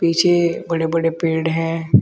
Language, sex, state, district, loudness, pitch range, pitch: Hindi, male, Uttar Pradesh, Shamli, -18 LUFS, 165-170 Hz, 165 Hz